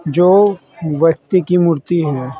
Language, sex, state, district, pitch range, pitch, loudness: Hindi, male, Uttar Pradesh, Saharanpur, 150-180 Hz, 165 Hz, -14 LUFS